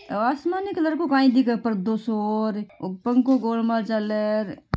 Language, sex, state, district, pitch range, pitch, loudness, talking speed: Marwari, female, Rajasthan, Nagaur, 215-260 Hz, 230 Hz, -23 LUFS, 150 wpm